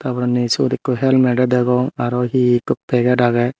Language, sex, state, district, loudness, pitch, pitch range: Chakma, male, Tripura, Unakoti, -17 LUFS, 125 Hz, 120-125 Hz